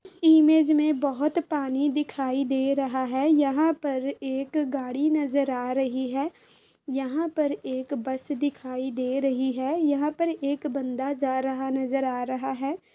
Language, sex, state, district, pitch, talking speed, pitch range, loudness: Hindi, female, Uttar Pradesh, Ghazipur, 275 Hz, 165 wpm, 265-300 Hz, -26 LUFS